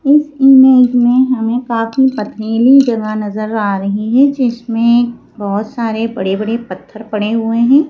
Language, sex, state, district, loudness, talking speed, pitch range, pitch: Hindi, female, Madhya Pradesh, Bhopal, -13 LUFS, 145 wpm, 215-255 Hz, 230 Hz